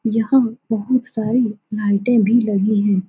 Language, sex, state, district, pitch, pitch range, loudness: Hindi, female, Bihar, Saran, 220 Hz, 210-240 Hz, -18 LUFS